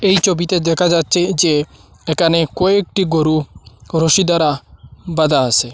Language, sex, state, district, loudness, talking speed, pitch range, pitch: Bengali, male, Assam, Hailakandi, -15 LUFS, 135 wpm, 155-180 Hz, 165 Hz